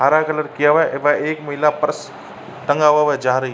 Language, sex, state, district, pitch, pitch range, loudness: Hindi, male, Uttar Pradesh, Varanasi, 150 Hz, 145-150 Hz, -17 LUFS